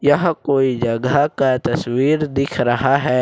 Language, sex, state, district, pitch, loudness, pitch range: Hindi, male, Jharkhand, Ranchi, 135 Hz, -18 LUFS, 125-145 Hz